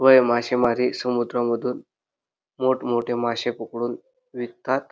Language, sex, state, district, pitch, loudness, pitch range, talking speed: Marathi, male, Maharashtra, Dhule, 120 Hz, -23 LUFS, 120-130 Hz, 110 wpm